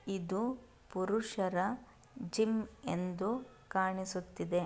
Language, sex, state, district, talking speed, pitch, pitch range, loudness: Kannada, female, Karnataka, Raichur, 65 wpm, 195 Hz, 185-220 Hz, -37 LUFS